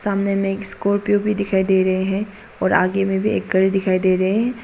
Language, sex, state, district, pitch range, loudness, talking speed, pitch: Hindi, female, Arunachal Pradesh, Papum Pare, 190-205 Hz, -19 LUFS, 245 wpm, 195 Hz